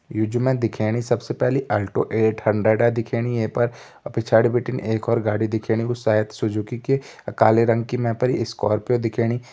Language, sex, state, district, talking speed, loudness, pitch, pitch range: Hindi, male, Uttarakhand, Tehri Garhwal, 190 wpm, -21 LUFS, 115 Hz, 110-120 Hz